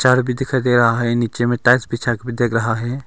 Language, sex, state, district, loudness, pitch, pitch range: Hindi, male, Arunachal Pradesh, Longding, -17 LUFS, 120 Hz, 120-125 Hz